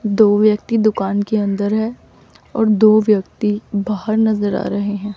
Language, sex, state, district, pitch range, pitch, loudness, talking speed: Hindi, female, Chandigarh, Chandigarh, 205-215 Hz, 210 Hz, -16 LUFS, 165 wpm